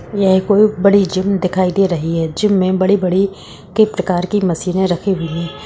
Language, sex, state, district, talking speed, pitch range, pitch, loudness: Hindi, female, Bihar, Gaya, 190 wpm, 175-200 Hz, 185 Hz, -15 LUFS